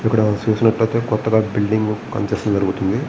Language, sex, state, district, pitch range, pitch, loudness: Telugu, male, Andhra Pradesh, Visakhapatnam, 105-110 Hz, 110 Hz, -19 LUFS